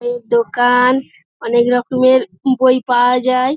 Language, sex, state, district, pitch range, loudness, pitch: Bengali, female, West Bengal, Dakshin Dinajpur, 245-265 Hz, -14 LUFS, 255 Hz